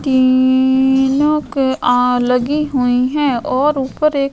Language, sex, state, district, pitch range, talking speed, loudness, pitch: Hindi, female, Goa, North and South Goa, 255-285 Hz, 140 wpm, -14 LUFS, 265 Hz